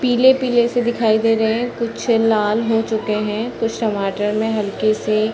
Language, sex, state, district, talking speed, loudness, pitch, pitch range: Hindi, female, Bihar, Sitamarhi, 190 wpm, -18 LUFS, 225 Hz, 215-235 Hz